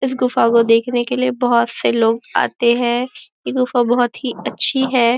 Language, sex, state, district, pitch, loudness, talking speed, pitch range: Hindi, female, Maharashtra, Nagpur, 245 Hz, -17 LUFS, 195 wpm, 235-255 Hz